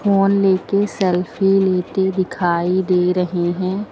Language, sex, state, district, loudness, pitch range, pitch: Hindi, female, Uttar Pradesh, Lucknow, -18 LUFS, 180-195 Hz, 185 Hz